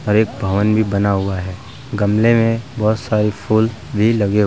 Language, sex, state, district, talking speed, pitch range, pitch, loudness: Hindi, male, Bihar, Vaishali, 175 wpm, 100-115 Hz, 105 Hz, -17 LUFS